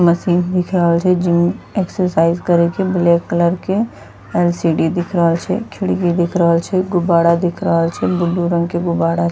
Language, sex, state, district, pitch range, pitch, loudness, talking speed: Angika, female, Bihar, Bhagalpur, 170-180 Hz, 175 Hz, -16 LUFS, 180 wpm